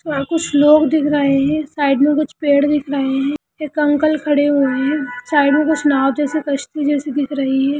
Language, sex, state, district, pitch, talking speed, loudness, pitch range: Hindi, female, Bihar, Lakhisarai, 290 Hz, 215 wpm, -16 LUFS, 280-300 Hz